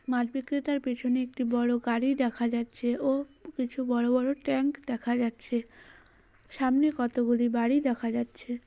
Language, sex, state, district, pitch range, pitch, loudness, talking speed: Bengali, female, West Bengal, Paschim Medinipur, 240-270 Hz, 250 Hz, -29 LUFS, 140 wpm